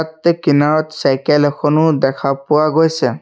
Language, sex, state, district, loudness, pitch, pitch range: Assamese, male, Assam, Sonitpur, -14 LUFS, 150 Hz, 140-160 Hz